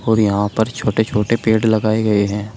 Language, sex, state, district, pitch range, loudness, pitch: Hindi, male, Uttar Pradesh, Shamli, 105-110 Hz, -17 LUFS, 110 Hz